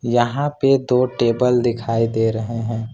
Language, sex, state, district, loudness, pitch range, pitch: Hindi, male, Jharkhand, Ranchi, -19 LUFS, 115-125 Hz, 120 Hz